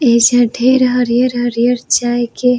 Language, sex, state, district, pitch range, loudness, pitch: Bhojpuri, female, Uttar Pradesh, Varanasi, 240-250 Hz, -13 LUFS, 245 Hz